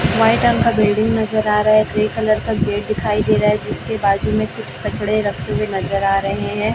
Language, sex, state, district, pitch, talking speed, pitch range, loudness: Hindi, male, Chhattisgarh, Raipur, 210 Hz, 240 wpm, 205-215 Hz, -17 LUFS